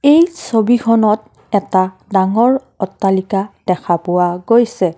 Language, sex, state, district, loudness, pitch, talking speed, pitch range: Assamese, female, Assam, Kamrup Metropolitan, -15 LUFS, 200 Hz, 95 wpm, 185-235 Hz